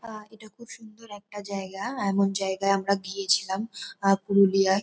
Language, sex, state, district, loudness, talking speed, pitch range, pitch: Bengali, female, West Bengal, North 24 Parganas, -25 LUFS, 150 wpm, 195-215 Hz, 200 Hz